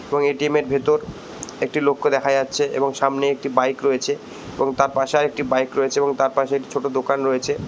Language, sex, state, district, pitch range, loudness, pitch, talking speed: Bengali, male, West Bengal, Purulia, 135-145 Hz, -20 LUFS, 140 Hz, 210 wpm